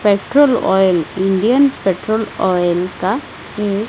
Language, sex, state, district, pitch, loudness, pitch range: Hindi, female, Odisha, Malkangiri, 200 Hz, -15 LUFS, 185-220 Hz